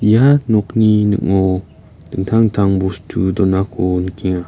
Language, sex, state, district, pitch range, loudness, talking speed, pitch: Garo, male, Meghalaya, West Garo Hills, 95-110 Hz, -15 LUFS, 105 wpm, 95 Hz